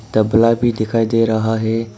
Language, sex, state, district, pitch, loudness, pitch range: Hindi, male, Arunachal Pradesh, Papum Pare, 115 Hz, -16 LUFS, 110-115 Hz